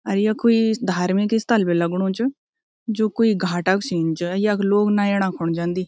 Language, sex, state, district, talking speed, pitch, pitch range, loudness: Garhwali, female, Uttarakhand, Tehri Garhwal, 195 wpm, 200 Hz, 180-220 Hz, -20 LUFS